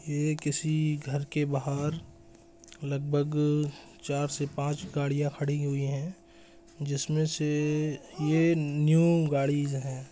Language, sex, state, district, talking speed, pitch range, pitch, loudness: Hindi, male, Jharkhand, Jamtara, 115 wpm, 140-155 Hz, 145 Hz, -29 LUFS